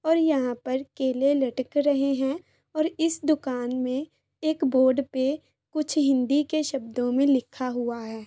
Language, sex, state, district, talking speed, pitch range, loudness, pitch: Hindi, female, Chhattisgarh, Bilaspur, 160 wpm, 255-305 Hz, -25 LUFS, 275 Hz